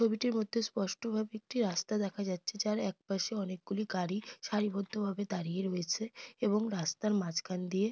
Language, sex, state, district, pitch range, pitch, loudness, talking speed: Bengali, female, West Bengal, North 24 Parganas, 190-220 Hz, 205 Hz, -35 LUFS, 160 wpm